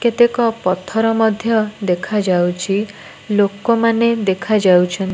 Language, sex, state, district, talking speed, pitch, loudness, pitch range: Odia, female, Odisha, Nuapada, 80 wpm, 210 Hz, -16 LUFS, 190-225 Hz